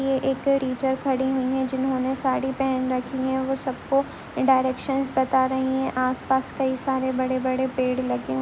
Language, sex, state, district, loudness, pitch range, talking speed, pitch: Hindi, female, Chhattisgarh, Sarguja, -24 LUFS, 260-265 Hz, 170 wpm, 260 Hz